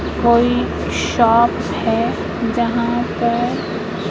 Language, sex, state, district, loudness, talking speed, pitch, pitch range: Hindi, female, Madhya Pradesh, Katni, -17 LUFS, 75 wpm, 235 Hz, 230-235 Hz